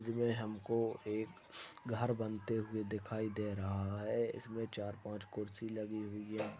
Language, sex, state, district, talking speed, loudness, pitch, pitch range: Hindi, male, Chhattisgarh, Balrampur, 165 wpm, -41 LUFS, 110 Hz, 105-115 Hz